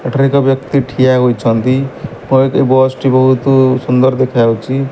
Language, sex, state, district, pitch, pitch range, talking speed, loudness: Odia, male, Odisha, Malkangiri, 130 Hz, 125-135 Hz, 135 wpm, -12 LUFS